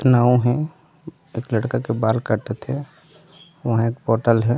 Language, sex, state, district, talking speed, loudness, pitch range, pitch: Chhattisgarhi, male, Chhattisgarh, Raigarh, 155 wpm, -21 LUFS, 115-155 Hz, 125 Hz